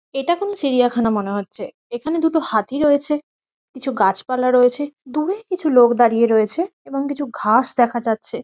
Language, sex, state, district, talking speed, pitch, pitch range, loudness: Bengali, female, West Bengal, Kolkata, 155 wpm, 255 Hz, 235-300 Hz, -18 LUFS